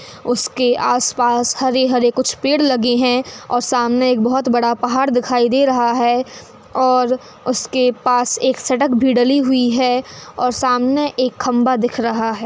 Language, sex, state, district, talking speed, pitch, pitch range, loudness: Hindi, female, Uttar Pradesh, Hamirpur, 160 wpm, 250 Hz, 245-255 Hz, -16 LUFS